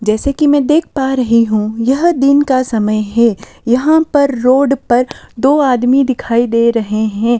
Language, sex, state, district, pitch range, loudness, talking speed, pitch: Hindi, female, Delhi, New Delhi, 230-280 Hz, -12 LUFS, 180 wpm, 255 Hz